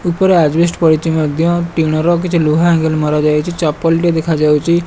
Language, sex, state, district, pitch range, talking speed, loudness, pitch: Odia, male, Odisha, Malkangiri, 155-170 Hz, 135 wpm, -13 LUFS, 165 Hz